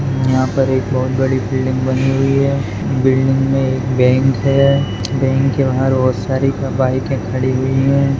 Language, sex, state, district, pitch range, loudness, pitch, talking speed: Hindi, male, Maharashtra, Dhule, 130-135 Hz, -15 LUFS, 130 Hz, 170 wpm